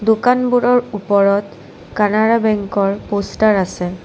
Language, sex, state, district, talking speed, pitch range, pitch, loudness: Assamese, female, Assam, Kamrup Metropolitan, 90 wpm, 200-225 Hz, 210 Hz, -16 LUFS